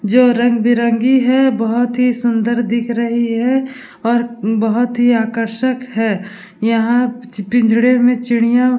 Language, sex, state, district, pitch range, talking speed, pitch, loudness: Hindi, female, Bihar, Vaishali, 230-245 Hz, 130 wpm, 235 Hz, -15 LUFS